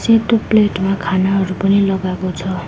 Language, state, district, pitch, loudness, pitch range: Nepali, West Bengal, Darjeeling, 195 Hz, -16 LUFS, 185-205 Hz